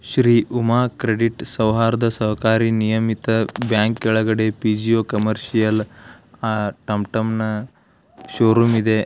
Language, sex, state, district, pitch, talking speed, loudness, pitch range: Kannada, male, Karnataka, Belgaum, 110 Hz, 95 wpm, -19 LUFS, 110-115 Hz